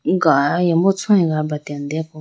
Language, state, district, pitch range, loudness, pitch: Idu Mishmi, Arunachal Pradesh, Lower Dibang Valley, 150-180 Hz, -18 LUFS, 160 Hz